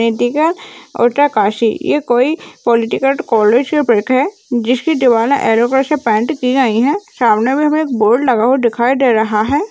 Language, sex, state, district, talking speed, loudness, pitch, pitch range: Hindi, female, Uttarakhand, Uttarkashi, 165 wpm, -13 LUFS, 255 Hz, 230-290 Hz